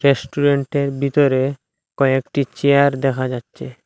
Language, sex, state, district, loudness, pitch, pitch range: Bengali, male, Assam, Hailakandi, -18 LUFS, 140 Hz, 130-140 Hz